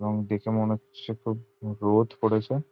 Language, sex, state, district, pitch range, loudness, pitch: Bengali, male, West Bengal, Jhargram, 105-115 Hz, -28 LUFS, 110 Hz